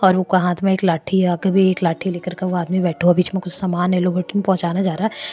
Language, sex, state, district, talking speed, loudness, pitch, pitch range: Marwari, female, Rajasthan, Churu, 295 wpm, -19 LUFS, 185 Hz, 175-190 Hz